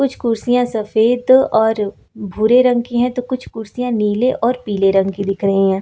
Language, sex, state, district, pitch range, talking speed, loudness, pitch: Hindi, female, Uttar Pradesh, Lucknow, 205-245 Hz, 195 wpm, -16 LUFS, 225 Hz